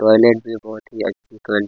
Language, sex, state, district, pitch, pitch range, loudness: Hindi, male, Chhattisgarh, Kabirdham, 110 Hz, 110-115 Hz, -18 LUFS